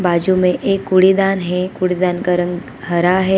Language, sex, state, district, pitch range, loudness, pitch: Hindi, female, Bihar, Gopalganj, 175-190 Hz, -16 LUFS, 180 Hz